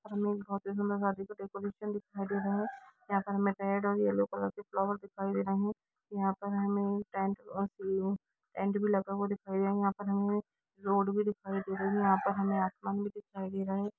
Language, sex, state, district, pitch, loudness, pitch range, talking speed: Hindi, female, Bihar, Jamui, 200 Hz, -34 LUFS, 195-205 Hz, 215 wpm